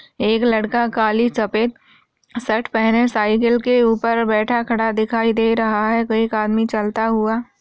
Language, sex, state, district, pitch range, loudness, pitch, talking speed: Hindi, female, Chhattisgarh, Sarguja, 220-235 Hz, -18 LUFS, 225 Hz, 150 wpm